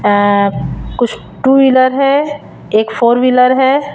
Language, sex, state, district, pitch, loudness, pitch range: Hindi, female, Chhattisgarh, Raipur, 255 Hz, -12 LUFS, 230-270 Hz